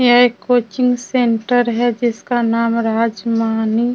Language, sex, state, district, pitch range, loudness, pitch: Hindi, female, Bihar, Vaishali, 230-245 Hz, -16 LUFS, 235 Hz